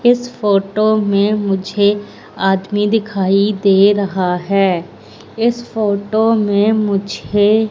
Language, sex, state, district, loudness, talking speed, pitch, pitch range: Hindi, female, Madhya Pradesh, Katni, -15 LUFS, 110 wpm, 205 Hz, 195-215 Hz